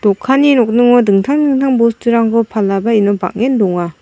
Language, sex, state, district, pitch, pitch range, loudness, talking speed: Garo, female, Meghalaya, South Garo Hills, 230 Hz, 200-250 Hz, -12 LUFS, 135 wpm